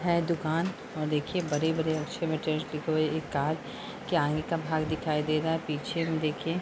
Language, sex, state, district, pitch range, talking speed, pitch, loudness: Hindi, female, Uttar Pradesh, Ghazipur, 155-165 Hz, 125 wpm, 155 Hz, -30 LUFS